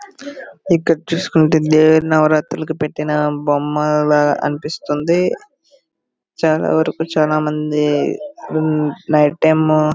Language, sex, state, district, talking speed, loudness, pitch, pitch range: Telugu, male, Andhra Pradesh, Srikakulam, 85 wpm, -16 LUFS, 155 Hz, 150-165 Hz